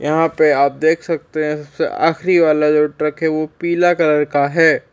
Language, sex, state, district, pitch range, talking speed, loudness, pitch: Hindi, male, Uttar Pradesh, Jalaun, 150-165 Hz, 205 wpm, -16 LUFS, 155 Hz